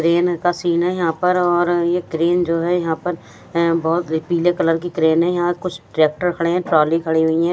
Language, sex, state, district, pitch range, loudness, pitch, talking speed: Hindi, female, Punjab, Fazilka, 165-175 Hz, -18 LUFS, 170 Hz, 240 wpm